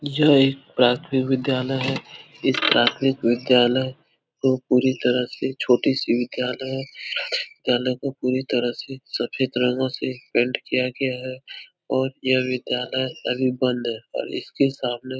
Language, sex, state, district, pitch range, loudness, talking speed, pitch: Hindi, male, Uttar Pradesh, Etah, 125-135 Hz, -22 LUFS, 145 wpm, 130 Hz